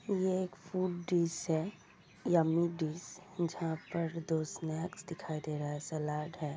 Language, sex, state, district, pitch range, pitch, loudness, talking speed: Hindi, female, Uttar Pradesh, Ghazipur, 155-175 Hz, 170 Hz, -36 LUFS, 155 wpm